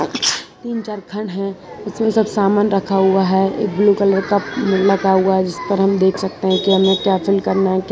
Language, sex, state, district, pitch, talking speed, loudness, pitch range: Hindi, female, Gujarat, Valsad, 195 Hz, 205 wpm, -17 LUFS, 190-205 Hz